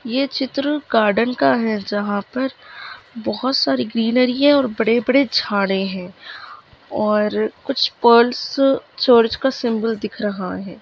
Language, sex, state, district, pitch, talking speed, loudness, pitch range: Hindi, female, Maharashtra, Solapur, 230 Hz, 135 wpm, -18 LUFS, 210-265 Hz